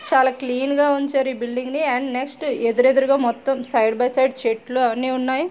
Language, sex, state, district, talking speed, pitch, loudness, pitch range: Telugu, female, Andhra Pradesh, Srikakulam, 185 wpm, 260 Hz, -20 LUFS, 245-270 Hz